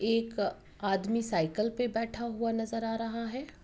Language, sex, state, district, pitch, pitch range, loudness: Hindi, female, Uttar Pradesh, Ghazipur, 230 Hz, 215-230 Hz, -33 LUFS